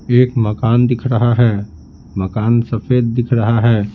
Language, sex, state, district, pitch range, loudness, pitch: Hindi, male, Bihar, Patna, 105-120 Hz, -15 LUFS, 115 Hz